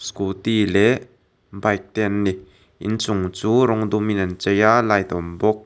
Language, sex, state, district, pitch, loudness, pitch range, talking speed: Mizo, male, Mizoram, Aizawl, 105 Hz, -20 LUFS, 95-110 Hz, 180 wpm